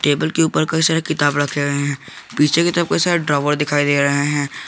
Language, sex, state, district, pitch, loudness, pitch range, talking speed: Hindi, male, Jharkhand, Garhwa, 150 Hz, -17 LUFS, 145-160 Hz, 245 wpm